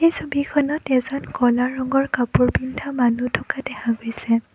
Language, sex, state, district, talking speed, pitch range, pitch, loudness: Assamese, female, Assam, Kamrup Metropolitan, 145 wpm, 245-275 Hz, 260 Hz, -21 LUFS